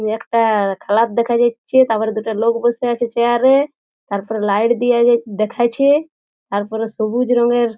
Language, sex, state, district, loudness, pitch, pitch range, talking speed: Bengali, female, West Bengal, Jhargram, -16 LUFS, 235 Hz, 220-240 Hz, 155 wpm